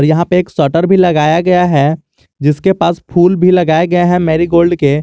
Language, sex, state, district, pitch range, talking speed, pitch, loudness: Hindi, male, Jharkhand, Garhwa, 155-180 Hz, 200 wpm, 170 Hz, -11 LUFS